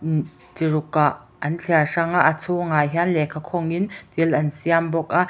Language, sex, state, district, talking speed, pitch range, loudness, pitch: Mizo, female, Mizoram, Aizawl, 215 wpm, 155-170 Hz, -21 LUFS, 165 Hz